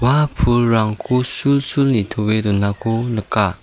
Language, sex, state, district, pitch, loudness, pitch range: Garo, male, Meghalaya, South Garo Hills, 115 Hz, -17 LUFS, 105-125 Hz